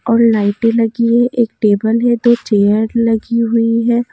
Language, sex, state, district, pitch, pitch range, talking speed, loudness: Hindi, female, Haryana, Jhajjar, 230 Hz, 220-235 Hz, 175 wpm, -13 LUFS